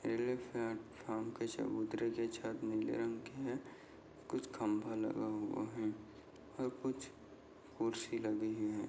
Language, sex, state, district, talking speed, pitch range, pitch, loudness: Hindi, male, Goa, North and South Goa, 135 wpm, 110-115 Hz, 115 Hz, -41 LUFS